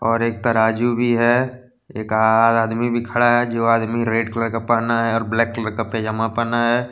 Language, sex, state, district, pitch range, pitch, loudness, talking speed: Hindi, male, Jharkhand, Deoghar, 115-120 Hz, 115 Hz, -19 LUFS, 215 wpm